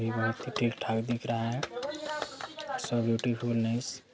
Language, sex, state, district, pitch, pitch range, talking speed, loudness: Hindi, male, Chhattisgarh, Sarguja, 120 Hz, 115-140 Hz, 175 wpm, -32 LUFS